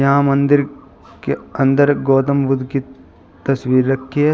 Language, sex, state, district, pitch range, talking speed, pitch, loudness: Hindi, male, Uttar Pradesh, Shamli, 135-140 Hz, 140 wpm, 135 Hz, -16 LUFS